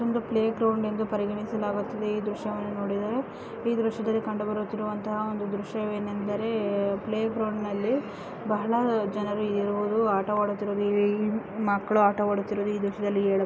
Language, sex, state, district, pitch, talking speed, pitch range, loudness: Kannada, female, Karnataka, Raichur, 210 Hz, 80 wpm, 205-220 Hz, -28 LUFS